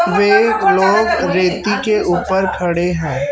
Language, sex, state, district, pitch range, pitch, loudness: Hindi, male, Chhattisgarh, Raipur, 180-210 Hz, 190 Hz, -14 LUFS